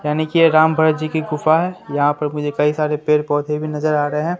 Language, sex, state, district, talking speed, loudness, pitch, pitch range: Hindi, male, Bihar, Katihar, 285 wpm, -17 LUFS, 150 Hz, 150-155 Hz